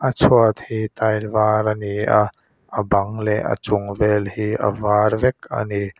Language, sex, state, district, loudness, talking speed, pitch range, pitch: Mizo, male, Mizoram, Aizawl, -19 LUFS, 200 wpm, 105-110 Hz, 105 Hz